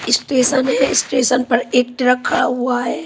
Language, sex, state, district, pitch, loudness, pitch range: Hindi, female, Punjab, Pathankot, 250 Hz, -16 LUFS, 250-260 Hz